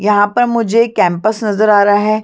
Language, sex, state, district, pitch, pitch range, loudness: Hindi, female, Chhattisgarh, Sarguja, 215 Hz, 205-225 Hz, -12 LUFS